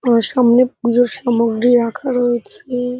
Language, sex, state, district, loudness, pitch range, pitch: Bengali, female, West Bengal, Paschim Medinipur, -15 LUFS, 235-250 Hz, 245 Hz